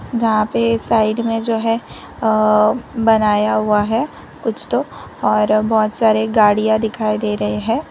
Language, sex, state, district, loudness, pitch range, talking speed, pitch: Hindi, female, Gujarat, Valsad, -17 LUFS, 210-225 Hz, 150 wpm, 215 Hz